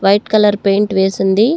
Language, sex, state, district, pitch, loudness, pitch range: Telugu, female, Andhra Pradesh, Chittoor, 205 Hz, -13 LUFS, 195-210 Hz